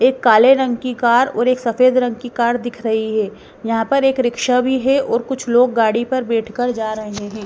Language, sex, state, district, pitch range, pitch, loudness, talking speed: Hindi, female, Bihar, Patna, 225-255 Hz, 240 Hz, -16 LUFS, 235 wpm